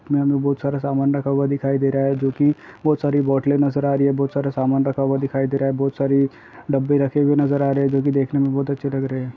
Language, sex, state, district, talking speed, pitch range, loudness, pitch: Hindi, male, Uttar Pradesh, Deoria, 290 wpm, 135-140 Hz, -20 LUFS, 140 Hz